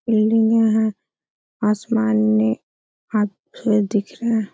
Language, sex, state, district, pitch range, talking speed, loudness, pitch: Hindi, female, Uttar Pradesh, Hamirpur, 200-225 Hz, 120 wpm, -20 LUFS, 215 Hz